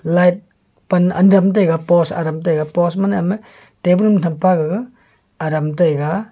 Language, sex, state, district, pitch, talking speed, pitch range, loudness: Wancho, male, Arunachal Pradesh, Longding, 180 Hz, 150 wpm, 165-195 Hz, -16 LUFS